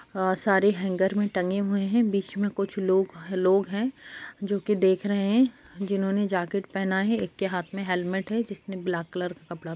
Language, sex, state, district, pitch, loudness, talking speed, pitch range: Hindi, female, Bihar, Gaya, 195 Hz, -26 LUFS, 195 wpm, 185-205 Hz